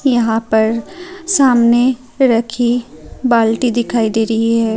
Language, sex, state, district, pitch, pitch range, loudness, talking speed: Hindi, female, Tripura, Unakoti, 235 Hz, 225-255 Hz, -14 LUFS, 115 wpm